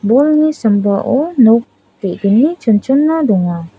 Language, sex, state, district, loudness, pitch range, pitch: Garo, female, Meghalaya, South Garo Hills, -12 LUFS, 200-285 Hz, 230 Hz